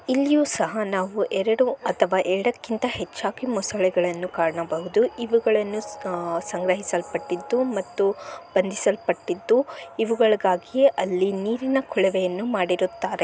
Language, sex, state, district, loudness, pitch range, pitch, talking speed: Kannada, female, Karnataka, Bellary, -24 LUFS, 185-240 Hz, 200 Hz, 80 wpm